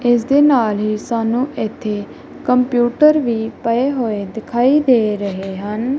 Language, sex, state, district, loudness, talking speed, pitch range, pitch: Punjabi, female, Punjab, Kapurthala, -17 LUFS, 140 wpm, 215-255 Hz, 235 Hz